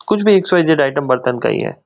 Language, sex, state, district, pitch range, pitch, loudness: Hindi, male, West Bengal, Kolkata, 130-190 Hz, 160 Hz, -14 LUFS